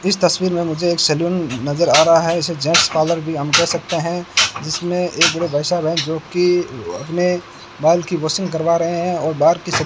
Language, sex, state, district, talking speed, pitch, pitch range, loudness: Hindi, male, Rajasthan, Bikaner, 220 wpm, 170 Hz, 155-175 Hz, -17 LUFS